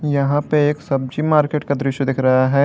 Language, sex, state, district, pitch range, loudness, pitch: Hindi, male, Jharkhand, Garhwa, 135-150 Hz, -18 LUFS, 140 Hz